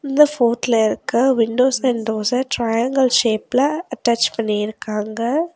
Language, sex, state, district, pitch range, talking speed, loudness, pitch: Tamil, female, Tamil Nadu, Nilgiris, 225-265 Hz, 95 wpm, -18 LUFS, 240 Hz